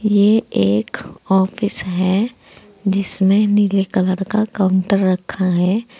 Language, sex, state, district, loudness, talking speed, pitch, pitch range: Hindi, female, Uttar Pradesh, Saharanpur, -17 LUFS, 110 wpm, 195 Hz, 185-210 Hz